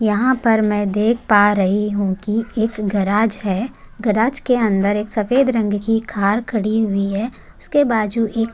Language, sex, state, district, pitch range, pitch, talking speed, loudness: Hindi, female, Maharashtra, Chandrapur, 205-230 Hz, 215 Hz, 175 wpm, -18 LUFS